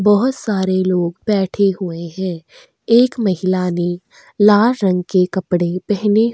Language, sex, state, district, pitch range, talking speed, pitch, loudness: Hindi, female, Goa, North and South Goa, 180-210 Hz, 150 wpm, 190 Hz, -17 LUFS